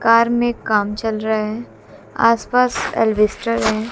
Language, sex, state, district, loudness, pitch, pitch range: Hindi, female, Haryana, Jhajjar, -18 LUFS, 225 Hz, 215-230 Hz